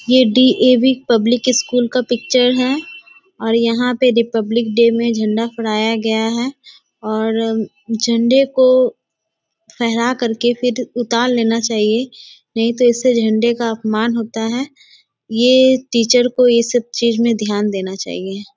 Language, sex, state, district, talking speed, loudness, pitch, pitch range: Hindi, female, Bihar, Bhagalpur, 150 wpm, -15 LUFS, 235 Hz, 225-250 Hz